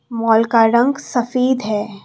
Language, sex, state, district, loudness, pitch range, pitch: Hindi, female, Assam, Kamrup Metropolitan, -16 LUFS, 225-250 Hz, 230 Hz